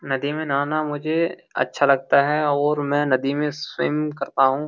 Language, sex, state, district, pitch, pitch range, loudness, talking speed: Hindi, male, Uttar Pradesh, Jyotiba Phule Nagar, 145 Hz, 140-150 Hz, -22 LUFS, 180 wpm